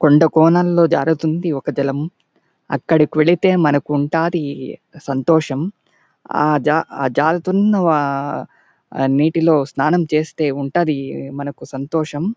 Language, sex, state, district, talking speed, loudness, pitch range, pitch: Telugu, male, Andhra Pradesh, Chittoor, 90 wpm, -17 LUFS, 145-165 Hz, 155 Hz